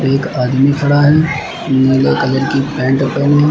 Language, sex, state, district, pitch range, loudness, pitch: Hindi, male, Uttar Pradesh, Lucknow, 135-145 Hz, -13 LUFS, 135 Hz